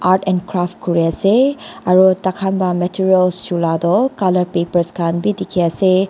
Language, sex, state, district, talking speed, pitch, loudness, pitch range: Nagamese, female, Nagaland, Dimapur, 165 wpm, 185 Hz, -16 LUFS, 175-190 Hz